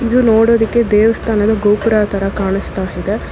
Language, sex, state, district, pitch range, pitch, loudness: Kannada, female, Karnataka, Bangalore, 205-230 Hz, 220 Hz, -14 LUFS